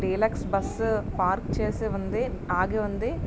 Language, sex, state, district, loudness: Telugu, male, Andhra Pradesh, Srikakulam, -27 LUFS